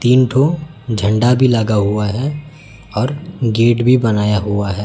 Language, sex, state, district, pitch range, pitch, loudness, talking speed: Hindi, male, Chhattisgarh, Raipur, 105-130 Hz, 120 Hz, -15 LUFS, 160 wpm